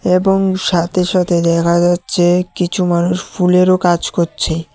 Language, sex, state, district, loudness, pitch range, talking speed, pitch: Bengali, male, Tripura, West Tripura, -14 LUFS, 170-180 Hz, 125 wpm, 175 Hz